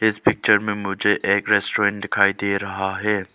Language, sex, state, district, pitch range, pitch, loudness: Hindi, male, Arunachal Pradesh, Lower Dibang Valley, 100-105 Hz, 100 Hz, -20 LUFS